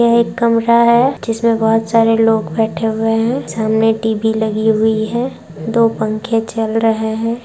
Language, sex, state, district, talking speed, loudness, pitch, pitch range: Hindi, female, Bihar, Darbhanga, 170 wpm, -15 LUFS, 225 Hz, 220-230 Hz